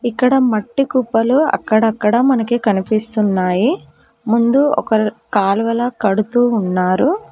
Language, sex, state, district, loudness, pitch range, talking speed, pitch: Telugu, female, Telangana, Mahabubabad, -15 LUFS, 210-250 Hz, 90 wpm, 230 Hz